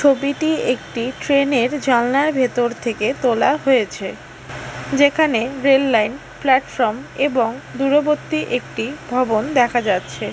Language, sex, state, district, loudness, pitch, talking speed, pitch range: Bengali, female, West Bengal, Alipurduar, -18 LUFS, 260 Hz, 105 wpm, 240-280 Hz